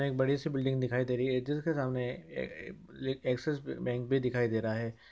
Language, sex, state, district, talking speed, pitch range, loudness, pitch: Maithili, male, Bihar, Samastipur, 200 wpm, 125-140 Hz, -33 LUFS, 130 Hz